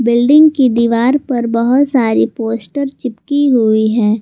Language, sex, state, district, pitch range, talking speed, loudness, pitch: Hindi, female, Jharkhand, Garhwa, 225-270 Hz, 140 wpm, -13 LUFS, 240 Hz